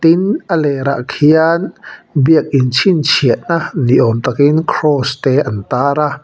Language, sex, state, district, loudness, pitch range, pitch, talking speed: Mizo, male, Mizoram, Aizawl, -13 LUFS, 130-160 Hz, 145 Hz, 145 wpm